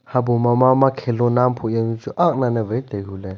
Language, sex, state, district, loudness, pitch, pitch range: Wancho, male, Arunachal Pradesh, Longding, -19 LUFS, 120 Hz, 115-130 Hz